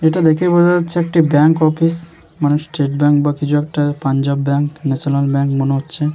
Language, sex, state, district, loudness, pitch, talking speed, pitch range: Bengali, male, West Bengal, Jalpaiguri, -15 LUFS, 150 Hz, 185 wpm, 140-165 Hz